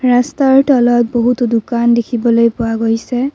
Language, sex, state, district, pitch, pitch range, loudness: Assamese, female, Assam, Kamrup Metropolitan, 240 Hz, 230-250 Hz, -13 LUFS